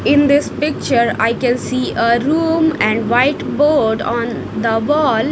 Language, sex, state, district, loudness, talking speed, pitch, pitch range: English, female, Punjab, Kapurthala, -15 LUFS, 160 wpm, 240 Hz, 225-295 Hz